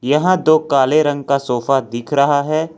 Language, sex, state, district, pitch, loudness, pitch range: Hindi, male, Jharkhand, Ranchi, 145 Hz, -15 LUFS, 135-155 Hz